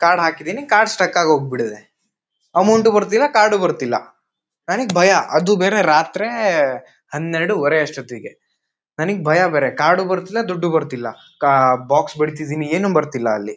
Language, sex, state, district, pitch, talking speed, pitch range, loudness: Kannada, male, Karnataka, Shimoga, 170 Hz, 130 wpm, 150-200 Hz, -17 LUFS